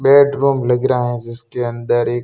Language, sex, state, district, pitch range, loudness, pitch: Hindi, male, Rajasthan, Barmer, 120-135 Hz, -16 LUFS, 125 Hz